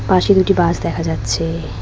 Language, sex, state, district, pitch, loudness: Bengali, female, West Bengal, Cooch Behar, 165 Hz, -16 LUFS